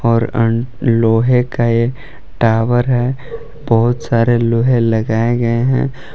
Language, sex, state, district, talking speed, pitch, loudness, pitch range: Hindi, male, Jharkhand, Palamu, 115 wpm, 120 Hz, -15 LUFS, 115-125 Hz